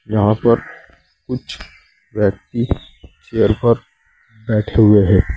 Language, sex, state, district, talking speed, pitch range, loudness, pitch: Hindi, male, Uttar Pradesh, Saharanpur, 100 wpm, 105-115 Hz, -16 LUFS, 105 Hz